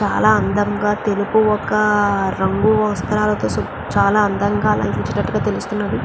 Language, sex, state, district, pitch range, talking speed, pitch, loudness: Telugu, female, Andhra Pradesh, Chittoor, 200-210 Hz, 110 wpm, 210 Hz, -17 LUFS